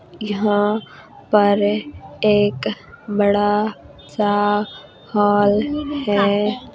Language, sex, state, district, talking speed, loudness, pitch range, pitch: Hindi, female, Uttar Pradesh, Jalaun, 60 wpm, -19 LUFS, 205-210 Hz, 205 Hz